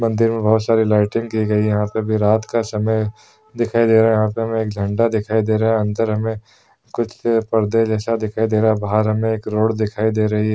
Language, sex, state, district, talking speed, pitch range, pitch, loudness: Hindi, male, Uttar Pradesh, Ghazipur, 255 wpm, 110-115 Hz, 110 Hz, -18 LUFS